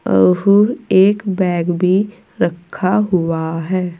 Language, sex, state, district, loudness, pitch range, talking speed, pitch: Hindi, female, Uttar Pradesh, Saharanpur, -16 LUFS, 170-200 Hz, 90 wpm, 180 Hz